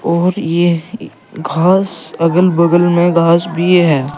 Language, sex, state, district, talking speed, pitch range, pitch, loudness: Hindi, male, Uttar Pradesh, Saharanpur, 130 wpm, 165-175 Hz, 170 Hz, -12 LUFS